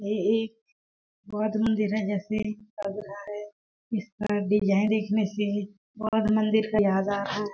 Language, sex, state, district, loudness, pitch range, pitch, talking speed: Hindi, female, Chhattisgarh, Balrampur, -27 LUFS, 205-215 Hz, 210 Hz, 135 wpm